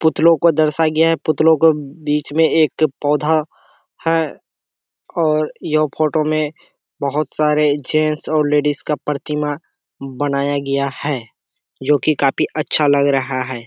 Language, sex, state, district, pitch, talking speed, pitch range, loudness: Hindi, male, Bihar, Kishanganj, 150 Hz, 150 wpm, 145-155 Hz, -17 LUFS